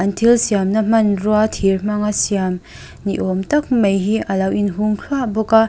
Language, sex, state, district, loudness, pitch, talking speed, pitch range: Mizo, female, Mizoram, Aizawl, -17 LUFS, 210 Hz, 170 wpm, 195-220 Hz